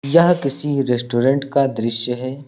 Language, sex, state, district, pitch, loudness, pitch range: Hindi, male, Uttar Pradesh, Lucknow, 135 Hz, -18 LUFS, 125-140 Hz